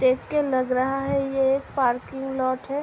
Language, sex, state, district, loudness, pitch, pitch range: Hindi, female, Uttar Pradesh, Hamirpur, -24 LUFS, 270 Hz, 255-275 Hz